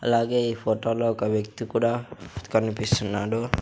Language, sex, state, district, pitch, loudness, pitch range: Telugu, male, Andhra Pradesh, Sri Satya Sai, 115 Hz, -25 LUFS, 110-115 Hz